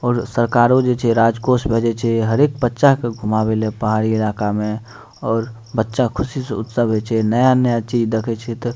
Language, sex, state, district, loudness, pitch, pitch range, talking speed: Maithili, male, Bihar, Madhepura, -18 LUFS, 115 Hz, 110-120 Hz, 205 wpm